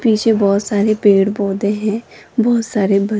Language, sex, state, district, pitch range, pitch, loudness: Hindi, female, Rajasthan, Jaipur, 200-220 Hz, 210 Hz, -16 LUFS